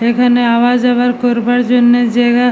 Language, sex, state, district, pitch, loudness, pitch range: Bengali, female, West Bengal, Jalpaiguri, 245 Hz, -11 LUFS, 240-245 Hz